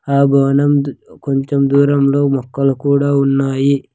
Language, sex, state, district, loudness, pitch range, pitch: Telugu, male, Andhra Pradesh, Sri Satya Sai, -14 LUFS, 135-140 Hz, 140 Hz